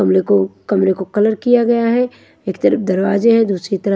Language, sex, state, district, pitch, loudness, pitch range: Hindi, female, Punjab, Kapurthala, 200 Hz, -15 LUFS, 190-230 Hz